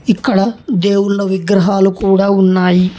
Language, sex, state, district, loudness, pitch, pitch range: Telugu, male, Telangana, Hyderabad, -12 LUFS, 195 Hz, 190-200 Hz